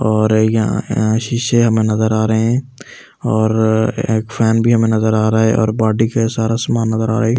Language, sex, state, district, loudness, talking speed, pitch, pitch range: Hindi, male, Delhi, New Delhi, -15 LUFS, 220 wpm, 110 Hz, 110-115 Hz